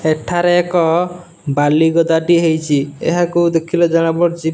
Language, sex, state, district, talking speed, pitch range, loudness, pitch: Odia, male, Odisha, Nuapada, 130 wpm, 160-175 Hz, -15 LUFS, 165 Hz